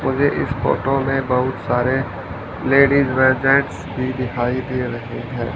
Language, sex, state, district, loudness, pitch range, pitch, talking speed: Hindi, male, Haryana, Rohtak, -19 LUFS, 120-135 Hz, 130 Hz, 150 wpm